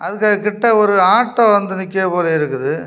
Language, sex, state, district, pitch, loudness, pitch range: Tamil, male, Tamil Nadu, Kanyakumari, 200 Hz, -14 LUFS, 185-210 Hz